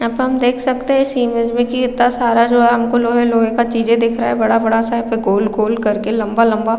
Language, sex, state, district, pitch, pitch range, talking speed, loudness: Hindi, female, Chhattisgarh, Raigarh, 235 Hz, 225-240 Hz, 255 wpm, -15 LUFS